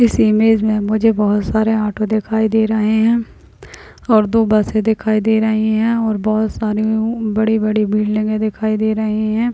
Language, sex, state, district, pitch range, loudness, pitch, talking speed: Hindi, female, Chhattisgarh, Balrampur, 215-220 Hz, -16 LUFS, 220 Hz, 175 wpm